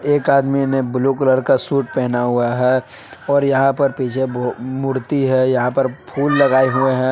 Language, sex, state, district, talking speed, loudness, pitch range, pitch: Hindi, male, Jharkhand, Palamu, 185 wpm, -17 LUFS, 130-140 Hz, 130 Hz